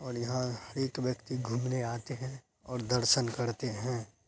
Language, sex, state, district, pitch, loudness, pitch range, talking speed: Hindi, female, Bihar, Araria, 125 Hz, -33 LUFS, 120-130 Hz, 155 wpm